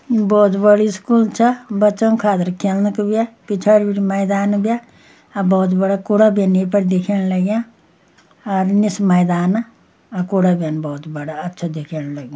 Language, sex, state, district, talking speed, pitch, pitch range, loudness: Garhwali, female, Uttarakhand, Uttarkashi, 165 wpm, 200 Hz, 185-210 Hz, -17 LUFS